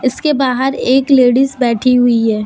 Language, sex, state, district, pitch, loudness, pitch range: Hindi, female, Jharkhand, Deoghar, 255 Hz, -12 LUFS, 245-270 Hz